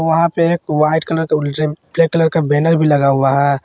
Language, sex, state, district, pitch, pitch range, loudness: Hindi, male, Jharkhand, Garhwa, 155 Hz, 145-165 Hz, -15 LUFS